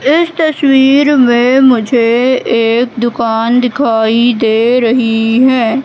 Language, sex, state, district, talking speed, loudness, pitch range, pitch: Hindi, female, Madhya Pradesh, Katni, 100 wpm, -10 LUFS, 230-265 Hz, 240 Hz